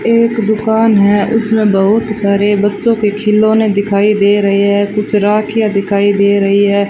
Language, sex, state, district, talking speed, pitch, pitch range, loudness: Hindi, female, Rajasthan, Bikaner, 165 wpm, 205 Hz, 200-220 Hz, -11 LUFS